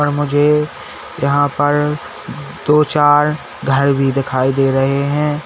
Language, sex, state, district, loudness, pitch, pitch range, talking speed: Hindi, male, Uttar Pradesh, Saharanpur, -15 LUFS, 145 Hz, 135-150 Hz, 130 wpm